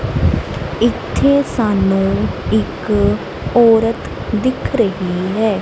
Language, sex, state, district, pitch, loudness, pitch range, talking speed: Punjabi, female, Punjab, Kapurthala, 220 Hz, -16 LUFS, 195-235 Hz, 75 wpm